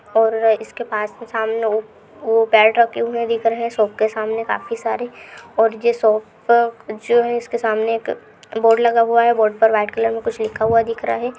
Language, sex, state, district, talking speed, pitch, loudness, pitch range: Hindi, female, Uttar Pradesh, Hamirpur, 205 wpm, 225 Hz, -18 LUFS, 220-235 Hz